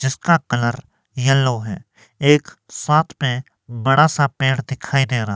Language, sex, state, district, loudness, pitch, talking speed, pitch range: Hindi, male, Himachal Pradesh, Shimla, -18 LUFS, 135 Hz, 145 wpm, 120-140 Hz